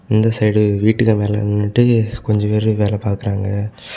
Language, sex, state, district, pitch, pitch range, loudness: Tamil, male, Tamil Nadu, Kanyakumari, 105 Hz, 105-110 Hz, -16 LUFS